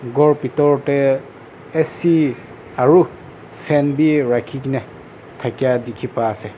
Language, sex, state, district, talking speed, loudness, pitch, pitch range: Nagamese, male, Nagaland, Dimapur, 100 wpm, -18 LUFS, 135 Hz, 120-150 Hz